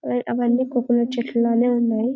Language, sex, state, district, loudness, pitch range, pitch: Telugu, female, Telangana, Karimnagar, -20 LUFS, 235-245 Hz, 240 Hz